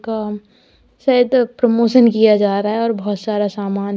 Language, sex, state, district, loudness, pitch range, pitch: Hindi, female, Uttar Pradesh, Lalitpur, -16 LUFS, 205-235 Hz, 220 Hz